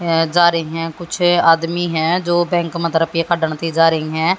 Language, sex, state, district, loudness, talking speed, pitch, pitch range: Hindi, female, Haryana, Jhajjar, -16 LUFS, 165 wpm, 165 Hz, 165-175 Hz